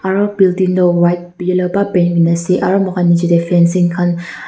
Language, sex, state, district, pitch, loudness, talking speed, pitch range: Nagamese, female, Nagaland, Dimapur, 180 Hz, -13 LUFS, 135 wpm, 175-185 Hz